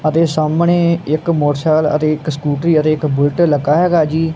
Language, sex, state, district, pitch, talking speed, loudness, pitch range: Punjabi, male, Punjab, Kapurthala, 155 Hz, 180 wpm, -14 LUFS, 150-165 Hz